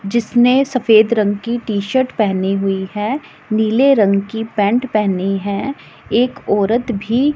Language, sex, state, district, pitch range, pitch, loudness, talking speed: Hindi, female, Punjab, Pathankot, 200-245 Hz, 220 Hz, -16 LUFS, 145 wpm